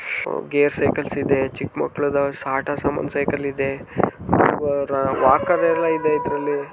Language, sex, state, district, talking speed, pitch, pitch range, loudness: Kannada, male, Karnataka, Dharwad, 115 wpm, 140 Hz, 140-145 Hz, -21 LUFS